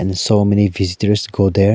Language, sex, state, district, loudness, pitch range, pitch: English, male, Arunachal Pradesh, Lower Dibang Valley, -16 LUFS, 95-105 Hz, 100 Hz